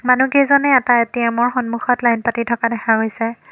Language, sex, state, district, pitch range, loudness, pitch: Assamese, female, Assam, Kamrup Metropolitan, 230-250 Hz, -16 LUFS, 235 Hz